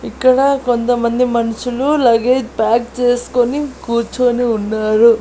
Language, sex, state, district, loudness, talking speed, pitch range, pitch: Telugu, female, Andhra Pradesh, Annamaya, -15 LUFS, 90 wpm, 235-250 Hz, 245 Hz